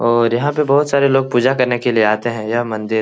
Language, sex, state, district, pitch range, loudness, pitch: Hindi, male, Bihar, Jahanabad, 115-135 Hz, -16 LUFS, 120 Hz